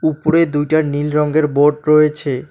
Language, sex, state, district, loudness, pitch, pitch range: Bengali, male, West Bengal, Alipurduar, -15 LUFS, 150 Hz, 145-155 Hz